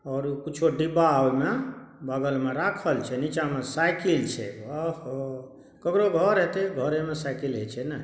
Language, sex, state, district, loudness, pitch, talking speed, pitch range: Maithili, male, Bihar, Saharsa, -26 LUFS, 145 Hz, 180 wpm, 135-165 Hz